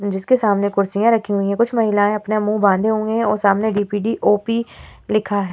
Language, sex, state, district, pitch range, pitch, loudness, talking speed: Hindi, female, Uttar Pradesh, Hamirpur, 200-220 Hz, 210 Hz, -18 LUFS, 205 wpm